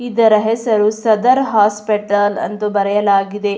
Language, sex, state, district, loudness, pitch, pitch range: Kannada, female, Karnataka, Mysore, -15 LUFS, 210 Hz, 205-225 Hz